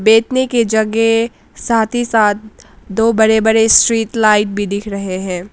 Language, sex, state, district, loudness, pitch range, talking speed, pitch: Hindi, female, Arunachal Pradesh, Lower Dibang Valley, -14 LUFS, 210-225 Hz, 165 wpm, 220 Hz